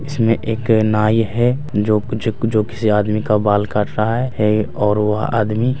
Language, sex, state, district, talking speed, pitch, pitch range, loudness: Hindi, male, Bihar, Bhagalpur, 185 wpm, 110 Hz, 105-115 Hz, -17 LUFS